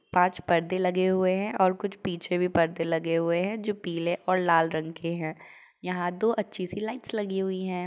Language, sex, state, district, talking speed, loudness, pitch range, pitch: Hindi, female, Uttar Pradesh, Jalaun, 215 wpm, -27 LUFS, 170-190 Hz, 180 Hz